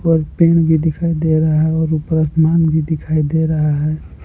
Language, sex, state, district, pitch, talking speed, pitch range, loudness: Hindi, male, Jharkhand, Palamu, 160 Hz, 210 wpm, 155-160 Hz, -15 LUFS